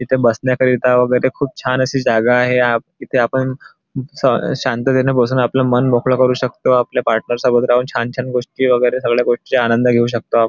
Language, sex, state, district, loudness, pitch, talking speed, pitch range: Marathi, male, Maharashtra, Nagpur, -15 LUFS, 125 Hz, 195 wpm, 120-130 Hz